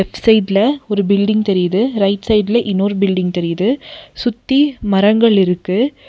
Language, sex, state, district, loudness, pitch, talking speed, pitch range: Tamil, female, Tamil Nadu, Nilgiris, -15 LUFS, 205 Hz, 130 wpm, 195-235 Hz